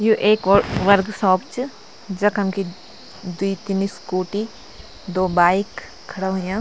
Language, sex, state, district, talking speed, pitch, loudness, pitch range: Garhwali, female, Uttarakhand, Tehri Garhwal, 125 wpm, 195 Hz, -20 LUFS, 185-205 Hz